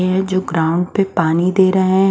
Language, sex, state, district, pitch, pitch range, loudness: Hindi, female, Haryana, Charkhi Dadri, 185 Hz, 175-190 Hz, -16 LUFS